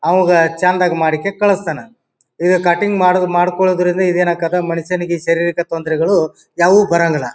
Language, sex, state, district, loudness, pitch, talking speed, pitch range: Kannada, male, Karnataka, Bijapur, -15 LUFS, 175 Hz, 130 wpm, 165-180 Hz